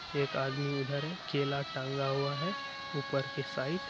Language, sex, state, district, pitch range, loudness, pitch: Hindi, male, Bihar, Araria, 140-155 Hz, -35 LUFS, 140 Hz